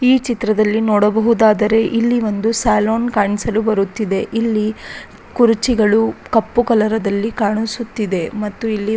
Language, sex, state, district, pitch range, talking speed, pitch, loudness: Kannada, female, Karnataka, Raichur, 210-230 Hz, 105 wpm, 220 Hz, -16 LUFS